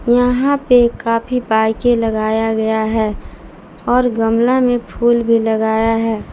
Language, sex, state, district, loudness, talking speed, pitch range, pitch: Hindi, female, Jharkhand, Palamu, -15 LUFS, 135 wpm, 220-245 Hz, 225 Hz